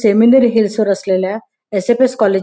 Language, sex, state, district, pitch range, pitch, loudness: Marathi, female, Maharashtra, Nagpur, 195-235 Hz, 215 Hz, -14 LUFS